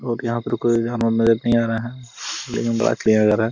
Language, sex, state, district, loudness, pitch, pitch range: Hindi, male, Jharkhand, Jamtara, -20 LUFS, 115 Hz, 115-120 Hz